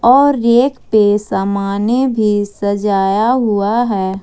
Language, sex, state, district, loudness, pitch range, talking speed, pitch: Hindi, female, Jharkhand, Ranchi, -14 LUFS, 200-240 Hz, 115 wpm, 210 Hz